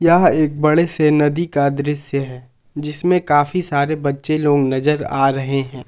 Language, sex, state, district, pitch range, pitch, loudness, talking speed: Hindi, male, Jharkhand, Palamu, 140-155 Hz, 145 Hz, -17 LUFS, 175 wpm